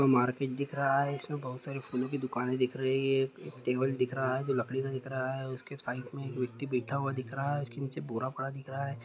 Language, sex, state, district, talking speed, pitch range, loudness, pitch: Hindi, male, Bihar, Jahanabad, 270 wpm, 130-140 Hz, -33 LUFS, 135 Hz